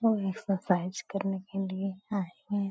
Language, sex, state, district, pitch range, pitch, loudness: Hindi, female, Uttar Pradesh, Etah, 190-200 Hz, 195 Hz, -32 LUFS